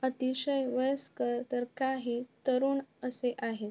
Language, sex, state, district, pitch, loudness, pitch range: Marathi, female, Maharashtra, Sindhudurg, 255 Hz, -33 LUFS, 245-265 Hz